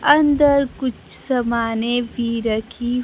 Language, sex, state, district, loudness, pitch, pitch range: Hindi, female, Bihar, Kaimur, -19 LUFS, 245 Hz, 230-275 Hz